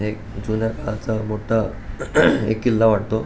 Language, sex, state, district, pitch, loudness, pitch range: Marathi, male, Goa, North and South Goa, 110 Hz, -21 LUFS, 105-110 Hz